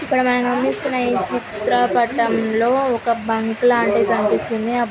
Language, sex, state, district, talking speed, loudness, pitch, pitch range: Telugu, female, Andhra Pradesh, Krishna, 135 wpm, -18 LUFS, 235 Hz, 225-245 Hz